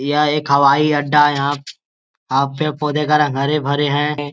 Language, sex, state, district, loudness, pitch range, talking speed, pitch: Hindi, male, Bihar, Gaya, -16 LUFS, 140-150 Hz, 150 wpm, 145 Hz